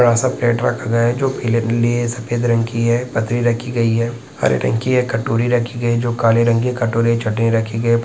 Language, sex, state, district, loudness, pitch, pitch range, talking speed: Hindi, male, Andhra Pradesh, Krishna, -17 LUFS, 115 Hz, 115-120 Hz, 255 wpm